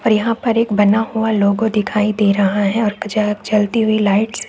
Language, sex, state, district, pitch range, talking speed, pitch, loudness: Hindi, female, Chhattisgarh, Raigarh, 205-220 Hz, 225 wpm, 215 Hz, -16 LUFS